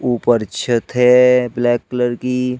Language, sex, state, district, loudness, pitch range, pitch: Hindi, male, Uttar Pradesh, Shamli, -15 LUFS, 120-125 Hz, 125 Hz